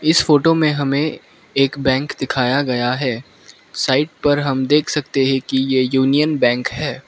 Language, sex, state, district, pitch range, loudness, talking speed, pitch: Hindi, male, Mizoram, Aizawl, 130-150 Hz, -17 LUFS, 170 wpm, 135 Hz